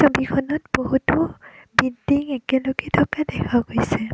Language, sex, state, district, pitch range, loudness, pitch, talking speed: Assamese, female, Assam, Kamrup Metropolitan, 255-285 Hz, -21 LUFS, 265 Hz, 100 wpm